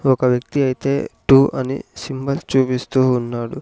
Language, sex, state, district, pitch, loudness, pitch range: Telugu, male, Andhra Pradesh, Sri Satya Sai, 130 Hz, -18 LUFS, 125-135 Hz